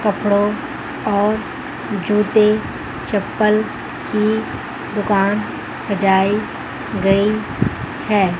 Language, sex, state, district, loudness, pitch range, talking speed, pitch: Hindi, female, Chandigarh, Chandigarh, -19 LUFS, 200-215 Hz, 65 wpm, 210 Hz